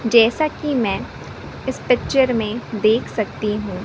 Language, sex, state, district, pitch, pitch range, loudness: Hindi, female, Chhattisgarh, Raipur, 230 Hz, 215-250 Hz, -20 LUFS